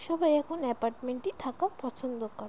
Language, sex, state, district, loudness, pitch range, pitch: Bengali, female, West Bengal, Jalpaiguri, -32 LUFS, 245-330 Hz, 260 Hz